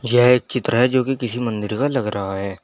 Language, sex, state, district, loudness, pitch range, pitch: Hindi, male, Uttar Pradesh, Saharanpur, -19 LUFS, 105-130 Hz, 120 Hz